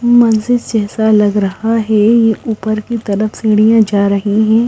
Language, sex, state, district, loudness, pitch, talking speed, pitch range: Hindi, female, Punjab, Kapurthala, -12 LUFS, 220 Hz, 165 wpm, 210-225 Hz